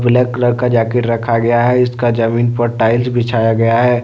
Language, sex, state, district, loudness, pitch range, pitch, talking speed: Hindi, male, Jharkhand, Deoghar, -14 LUFS, 115-125 Hz, 120 Hz, 210 wpm